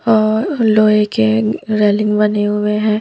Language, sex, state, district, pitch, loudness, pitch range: Hindi, female, Madhya Pradesh, Bhopal, 210 Hz, -14 LUFS, 205-215 Hz